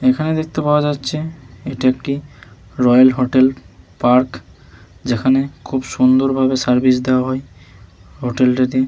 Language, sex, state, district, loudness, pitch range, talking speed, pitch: Bengali, male, West Bengal, Malda, -16 LUFS, 125-135 Hz, 135 wpm, 130 Hz